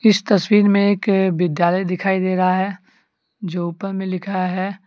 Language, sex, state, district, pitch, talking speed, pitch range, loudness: Hindi, male, Jharkhand, Deoghar, 190 Hz, 170 wpm, 185-200 Hz, -18 LUFS